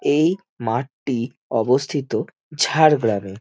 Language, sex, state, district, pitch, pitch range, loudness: Bengali, male, West Bengal, Jhargram, 130 Hz, 115-150 Hz, -21 LUFS